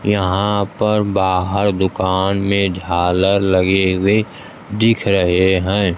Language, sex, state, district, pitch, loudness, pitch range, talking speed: Hindi, male, Bihar, Kaimur, 95 Hz, -16 LUFS, 95-100 Hz, 110 wpm